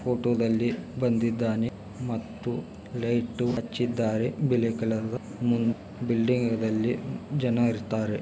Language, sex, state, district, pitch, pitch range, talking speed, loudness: Kannada, male, Karnataka, Belgaum, 115 Hz, 110-120 Hz, 100 wpm, -28 LUFS